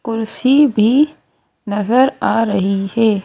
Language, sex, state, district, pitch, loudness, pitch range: Hindi, female, Madhya Pradesh, Bhopal, 225 Hz, -15 LUFS, 205-260 Hz